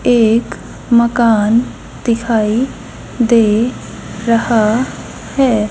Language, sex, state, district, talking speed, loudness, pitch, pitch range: Hindi, female, Haryana, Jhajjar, 65 wpm, -14 LUFS, 230 Hz, 220-240 Hz